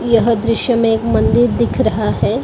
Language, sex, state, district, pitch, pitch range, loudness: Hindi, female, Maharashtra, Mumbai Suburban, 230 Hz, 225-235 Hz, -14 LUFS